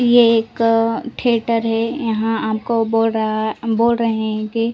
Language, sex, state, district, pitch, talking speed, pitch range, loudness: Hindi, female, Delhi, New Delhi, 225 Hz, 190 wpm, 220-230 Hz, -18 LUFS